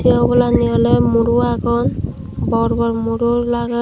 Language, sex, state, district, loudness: Chakma, female, Tripura, Dhalai, -16 LUFS